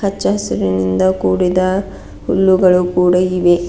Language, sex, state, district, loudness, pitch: Kannada, female, Karnataka, Bidar, -14 LUFS, 180 Hz